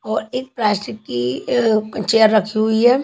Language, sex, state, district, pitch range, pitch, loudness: Hindi, female, Chhattisgarh, Raipur, 215-230 Hz, 220 Hz, -18 LUFS